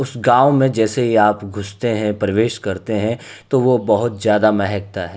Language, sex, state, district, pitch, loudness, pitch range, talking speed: Hindi, male, Uttar Pradesh, Hamirpur, 110 Hz, -17 LUFS, 105-120 Hz, 195 wpm